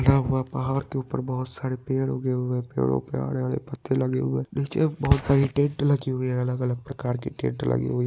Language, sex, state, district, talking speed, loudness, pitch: Hindi, male, Bihar, Saharsa, 235 wpm, -26 LUFS, 130 Hz